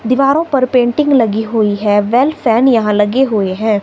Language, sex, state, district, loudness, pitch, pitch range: Hindi, female, Himachal Pradesh, Shimla, -12 LUFS, 235 Hz, 210-265 Hz